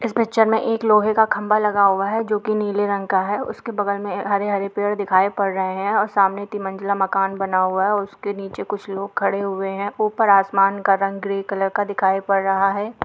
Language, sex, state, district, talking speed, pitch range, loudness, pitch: Hindi, female, Chhattisgarh, Bilaspur, 235 wpm, 195-210 Hz, -20 LUFS, 200 Hz